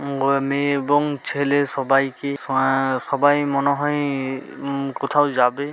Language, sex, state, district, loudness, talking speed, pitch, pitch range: Bengali, female, West Bengal, Paschim Medinipur, -21 LUFS, 115 wpm, 140 Hz, 135-145 Hz